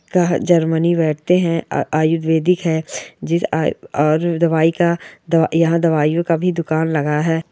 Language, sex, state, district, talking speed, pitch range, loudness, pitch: Hindi, female, Chhattisgarh, Bilaspur, 150 wpm, 160-170 Hz, -17 LUFS, 165 Hz